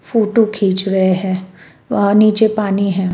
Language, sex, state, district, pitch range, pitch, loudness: Hindi, female, Chhattisgarh, Raipur, 190-215 Hz, 195 Hz, -15 LUFS